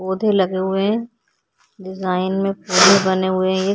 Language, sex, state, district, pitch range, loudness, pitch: Hindi, female, Uttar Pradesh, Jyotiba Phule Nagar, 185-195 Hz, -17 LUFS, 190 Hz